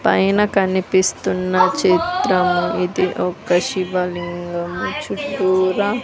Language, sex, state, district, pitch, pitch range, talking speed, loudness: Telugu, female, Andhra Pradesh, Sri Satya Sai, 185 Hz, 180-205 Hz, 70 wpm, -18 LUFS